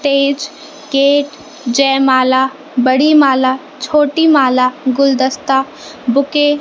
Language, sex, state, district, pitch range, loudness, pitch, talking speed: Hindi, female, Madhya Pradesh, Katni, 260-295 Hz, -13 LUFS, 275 Hz, 90 wpm